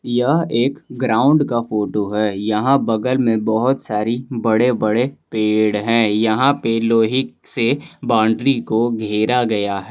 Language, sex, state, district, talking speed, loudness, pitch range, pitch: Hindi, male, Jharkhand, Palamu, 145 wpm, -18 LUFS, 110-125 Hz, 115 Hz